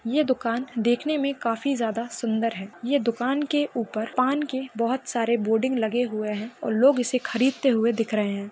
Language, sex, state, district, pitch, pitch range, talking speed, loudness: Hindi, female, Maharashtra, Pune, 235 Hz, 225-265 Hz, 195 wpm, -25 LUFS